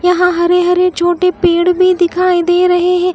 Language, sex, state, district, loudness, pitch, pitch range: Hindi, female, Bihar, Katihar, -11 LUFS, 360 Hz, 350-360 Hz